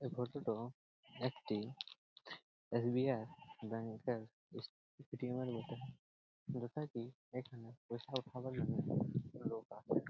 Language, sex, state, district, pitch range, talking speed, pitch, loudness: Bengali, male, West Bengal, Jhargram, 120-130 Hz, 115 wpm, 125 Hz, -44 LUFS